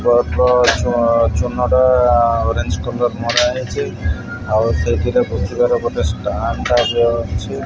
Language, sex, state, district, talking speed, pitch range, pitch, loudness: Odia, male, Odisha, Malkangiri, 125 wpm, 105-125 Hz, 120 Hz, -16 LUFS